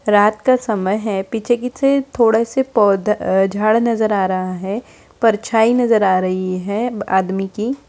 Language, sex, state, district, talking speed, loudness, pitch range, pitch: Hindi, female, Bihar, Begusarai, 160 wpm, -17 LUFS, 195-235 Hz, 215 Hz